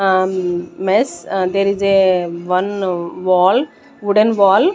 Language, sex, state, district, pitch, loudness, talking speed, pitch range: English, female, Maharashtra, Gondia, 190 Hz, -16 LUFS, 115 wpm, 185-200 Hz